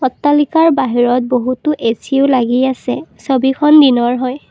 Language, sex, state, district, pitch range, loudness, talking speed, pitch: Assamese, female, Assam, Kamrup Metropolitan, 250-290 Hz, -13 LUFS, 120 wpm, 260 Hz